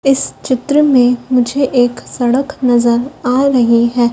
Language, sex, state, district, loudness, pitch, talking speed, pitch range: Hindi, female, Madhya Pradesh, Dhar, -13 LUFS, 250 Hz, 145 wpm, 240-270 Hz